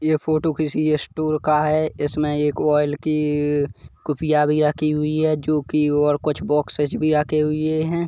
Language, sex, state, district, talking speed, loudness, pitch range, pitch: Hindi, male, Chhattisgarh, Kabirdham, 170 wpm, -20 LUFS, 150-155 Hz, 150 Hz